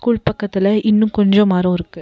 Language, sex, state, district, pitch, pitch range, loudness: Tamil, female, Tamil Nadu, Nilgiris, 205 Hz, 185-215 Hz, -15 LUFS